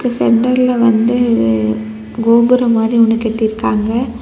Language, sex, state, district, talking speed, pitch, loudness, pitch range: Tamil, female, Tamil Nadu, Kanyakumari, 100 wpm, 230 Hz, -13 LUFS, 220-240 Hz